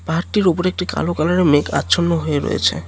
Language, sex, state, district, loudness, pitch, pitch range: Bengali, male, West Bengal, Cooch Behar, -17 LUFS, 170 Hz, 145-180 Hz